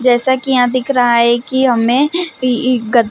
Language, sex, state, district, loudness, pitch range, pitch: Hindi, female, Chhattisgarh, Bilaspur, -13 LUFS, 240-260 Hz, 250 Hz